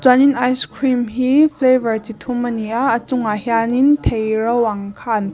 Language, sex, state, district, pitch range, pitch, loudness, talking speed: Mizo, female, Mizoram, Aizawl, 225-255 Hz, 240 Hz, -17 LUFS, 215 wpm